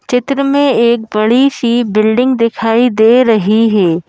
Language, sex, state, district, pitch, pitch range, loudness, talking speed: Hindi, female, Madhya Pradesh, Bhopal, 235 Hz, 220-250 Hz, -11 LUFS, 145 wpm